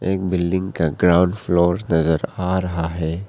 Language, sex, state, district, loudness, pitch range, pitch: Hindi, male, Arunachal Pradesh, Papum Pare, -19 LUFS, 85-95 Hz, 90 Hz